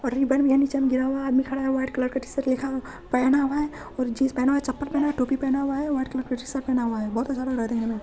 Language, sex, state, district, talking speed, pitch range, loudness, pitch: Hindi, female, Bihar, Saharsa, 350 wpm, 255-275 Hz, -25 LUFS, 265 Hz